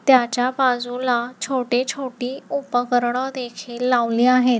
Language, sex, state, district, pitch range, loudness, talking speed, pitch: Marathi, female, Maharashtra, Nagpur, 245-260 Hz, -21 LUFS, 90 wpm, 250 Hz